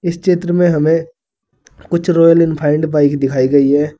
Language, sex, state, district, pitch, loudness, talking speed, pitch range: Hindi, male, Uttar Pradesh, Saharanpur, 160 Hz, -13 LUFS, 165 wpm, 145-170 Hz